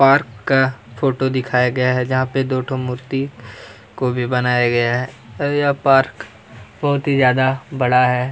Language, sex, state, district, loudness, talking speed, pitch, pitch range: Hindi, male, Chhattisgarh, Kabirdham, -18 LUFS, 175 wpm, 130 Hz, 125-135 Hz